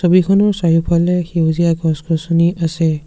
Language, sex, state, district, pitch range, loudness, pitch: Assamese, male, Assam, Sonitpur, 165-175 Hz, -15 LUFS, 170 Hz